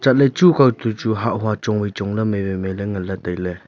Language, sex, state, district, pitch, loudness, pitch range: Wancho, male, Arunachal Pradesh, Longding, 105 Hz, -19 LUFS, 95-115 Hz